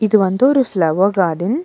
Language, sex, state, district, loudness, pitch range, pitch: Tamil, female, Tamil Nadu, Nilgiris, -15 LUFS, 185-250 Hz, 195 Hz